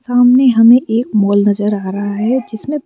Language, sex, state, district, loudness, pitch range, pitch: Hindi, female, Madhya Pradesh, Bhopal, -12 LUFS, 205-250 Hz, 225 Hz